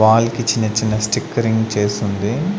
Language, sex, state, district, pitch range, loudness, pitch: Telugu, male, Andhra Pradesh, Sri Satya Sai, 105-115 Hz, -18 LUFS, 110 Hz